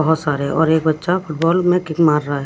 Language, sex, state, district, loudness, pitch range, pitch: Hindi, female, Maharashtra, Washim, -17 LUFS, 150-170 Hz, 160 Hz